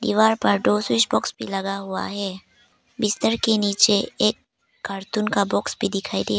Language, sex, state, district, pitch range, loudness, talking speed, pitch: Hindi, female, Arunachal Pradesh, Papum Pare, 185-210 Hz, -22 LUFS, 180 wpm, 200 Hz